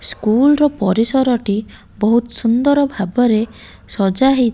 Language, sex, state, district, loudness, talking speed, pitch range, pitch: Odia, female, Odisha, Malkangiri, -15 LUFS, 130 wpm, 215-265 Hz, 235 Hz